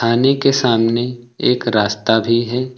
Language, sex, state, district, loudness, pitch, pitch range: Hindi, male, Uttar Pradesh, Lucknow, -16 LUFS, 120 Hz, 115-125 Hz